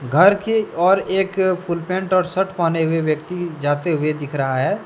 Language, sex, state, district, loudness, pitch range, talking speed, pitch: Hindi, male, Jharkhand, Deoghar, -19 LUFS, 155-190 Hz, 195 wpm, 175 Hz